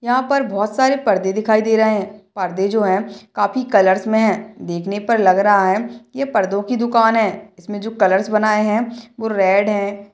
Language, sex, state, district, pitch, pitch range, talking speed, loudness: Hindi, male, Bihar, Purnia, 210 Hz, 200-225 Hz, 200 wpm, -17 LUFS